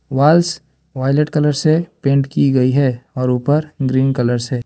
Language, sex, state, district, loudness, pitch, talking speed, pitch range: Hindi, male, Arunachal Pradesh, Lower Dibang Valley, -16 LUFS, 140 Hz, 165 wpm, 130-150 Hz